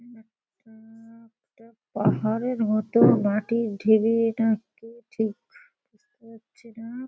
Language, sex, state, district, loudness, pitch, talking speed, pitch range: Bengali, female, West Bengal, Kolkata, -23 LUFS, 225 Hz, 100 wpm, 220-230 Hz